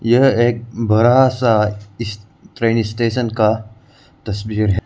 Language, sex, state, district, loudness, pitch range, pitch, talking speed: Hindi, male, Arunachal Pradesh, Lower Dibang Valley, -17 LUFS, 105-120 Hz, 115 Hz, 125 wpm